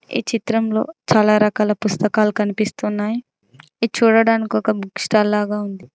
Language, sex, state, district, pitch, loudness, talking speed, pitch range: Telugu, female, Telangana, Mahabubabad, 215 Hz, -18 LUFS, 130 wpm, 210-225 Hz